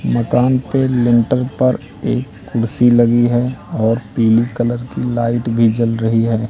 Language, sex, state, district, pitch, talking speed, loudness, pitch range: Hindi, male, Madhya Pradesh, Katni, 120 Hz, 155 wpm, -16 LUFS, 115-125 Hz